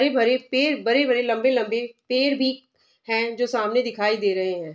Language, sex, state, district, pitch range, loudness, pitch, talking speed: Hindi, female, Bihar, Saharsa, 225-260 Hz, -22 LUFS, 240 Hz, 165 wpm